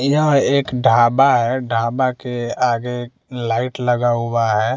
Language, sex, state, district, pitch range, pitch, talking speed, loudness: Hindi, male, Bihar, West Champaran, 120-130 Hz, 125 Hz, 125 wpm, -17 LUFS